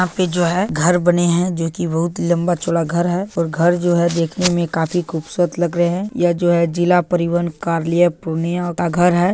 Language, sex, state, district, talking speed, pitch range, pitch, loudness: Hindi, male, Bihar, Purnia, 220 wpm, 170-175 Hz, 175 Hz, -18 LUFS